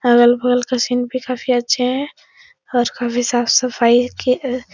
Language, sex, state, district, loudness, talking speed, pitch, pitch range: Hindi, female, Uttar Pradesh, Etah, -17 LUFS, 190 wpm, 245 Hz, 240-255 Hz